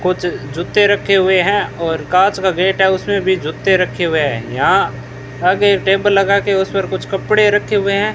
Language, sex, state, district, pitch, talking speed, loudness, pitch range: Hindi, male, Rajasthan, Bikaner, 190 Hz, 190 wpm, -14 LUFS, 175-200 Hz